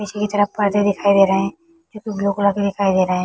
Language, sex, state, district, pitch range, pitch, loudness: Hindi, female, Chhattisgarh, Bilaspur, 200-210 Hz, 200 Hz, -18 LUFS